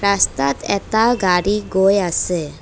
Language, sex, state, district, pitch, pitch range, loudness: Assamese, female, Assam, Kamrup Metropolitan, 190 Hz, 175-200 Hz, -17 LUFS